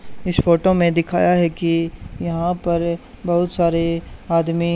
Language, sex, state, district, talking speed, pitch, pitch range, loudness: Hindi, male, Haryana, Charkhi Dadri, 140 wpm, 170 Hz, 165-175 Hz, -19 LUFS